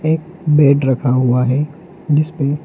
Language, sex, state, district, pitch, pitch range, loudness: Hindi, male, Madhya Pradesh, Dhar, 150 Hz, 135-160 Hz, -15 LUFS